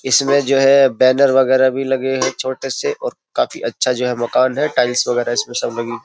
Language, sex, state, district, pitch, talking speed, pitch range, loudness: Hindi, male, Uttar Pradesh, Jyotiba Phule Nagar, 130 Hz, 230 wpm, 125-135 Hz, -16 LUFS